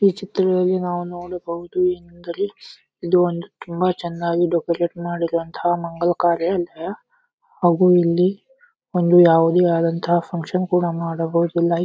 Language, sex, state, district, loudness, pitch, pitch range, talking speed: Kannada, male, Karnataka, Bijapur, -20 LUFS, 175 Hz, 170-180 Hz, 115 wpm